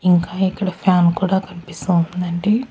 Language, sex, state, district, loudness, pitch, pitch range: Telugu, female, Andhra Pradesh, Annamaya, -18 LUFS, 180 Hz, 175-190 Hz